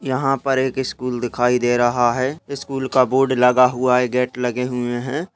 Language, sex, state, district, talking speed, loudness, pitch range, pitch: Hindi, male, Chhattisgarh, Rajnandgaon, 200 wpm, -19 LUFS, 125-130 Hz, 125 Hz